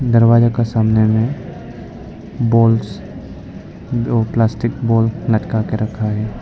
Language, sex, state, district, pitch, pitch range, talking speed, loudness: Hindi, male, Arunachal Pradesh, Lower Dibang Valley, 115 Hz, 110-115 Hz, 105 wpm, -16 LUFS